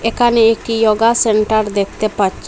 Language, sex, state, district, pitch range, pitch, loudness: Bengali, female, Assam, Hailakandi, 215-230 Hz, 220 Hz, -14 LUFS